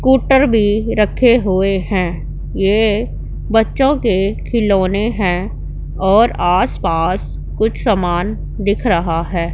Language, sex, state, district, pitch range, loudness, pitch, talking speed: Hindi, female, Punjab, Pathankot, 180-225 Hz, -15 LUFS, 205 Hz, 115 wpm